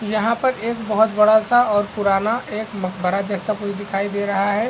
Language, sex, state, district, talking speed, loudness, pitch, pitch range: Hindi, male, Maharashtra, Aurangabad, 205 wpm, -19 LUFS, 210 Hz, 200-220 Hz